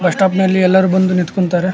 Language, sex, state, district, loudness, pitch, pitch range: Kannada, male, Karnataka, Dharwad, -13 LUFS, 185 Hz, 180-190 Hz